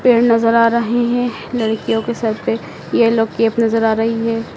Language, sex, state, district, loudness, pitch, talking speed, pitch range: Hindi, female, Madhya Pradesh, Dhar, -16 LUFS, 230 Hz, 195 wpm, 225-235 Hz